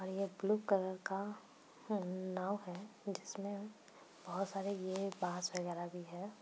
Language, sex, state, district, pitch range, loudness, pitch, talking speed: Hindi, female, Bihar, Bhagalpur, 185-200 Hz, -41 LUFS, 195 Hz, 150 wpm